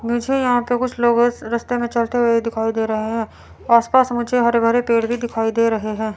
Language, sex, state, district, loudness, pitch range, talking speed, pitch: Hindi, female, Chandigarh, Chandigarh, -18 LUFS, 225-240 Hz, 225 wpm, 235 Hz